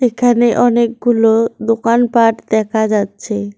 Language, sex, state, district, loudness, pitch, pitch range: Bengali, female, West Bengal, Cooch Behar, -14 LUFS, 230 Hz, 220-240 Hz